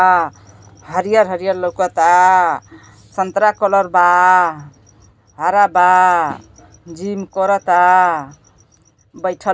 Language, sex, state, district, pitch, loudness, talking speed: Bhojpuri, female, Uttar Pradesh, Gorakhpur, 180 Hz, -14 LUFS, 75 wpm